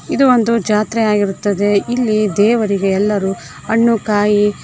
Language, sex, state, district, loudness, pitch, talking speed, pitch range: Kannada, female, Karnataka, Koppal, -15 LUFS, 210 Hz, 115 wpm, 200-230 Hz